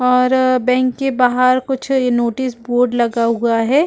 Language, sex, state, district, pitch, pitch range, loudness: Hindi, female, Chhattisgarh, Bilaspur, 250 Hz, 240-260 Hz, -16 LUFS